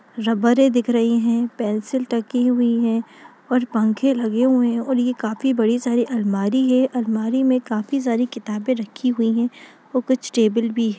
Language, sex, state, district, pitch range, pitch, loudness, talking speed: Hindi, female, Bihar, Jamui, 225-255 Hz, 240 Hz, -20 LUFS, 180 wpm